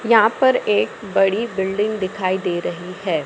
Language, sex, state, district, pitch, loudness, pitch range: Hindi, female, Madhya Pradesh, Katni, 195 Hz, -19 LUFS, 185-220 Hz